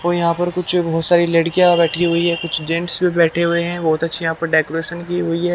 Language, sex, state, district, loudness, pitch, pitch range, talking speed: Hindi, male, Haryana, Jhajjar, -17 LUFS, 170 Hz, 165-175 Hz, 260 wpm